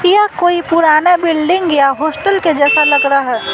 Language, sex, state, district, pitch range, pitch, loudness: Hindi, female, Bihar, Patna, 285-355 Hz, 320 Hz, -11 LUFS